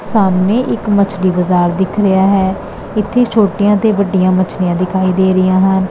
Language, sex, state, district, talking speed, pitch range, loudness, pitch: Punjabi, female, Punjab, Pathankot, 160 wpm, 185-205 Hz, -13 LUFS, 190 Hz